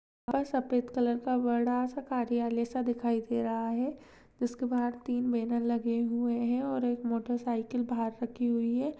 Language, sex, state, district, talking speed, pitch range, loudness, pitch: Hindi, female, Maharashtra, Chandrapur, 175 wpm, 235-250 Hz, -31 LUFS, 240 Hz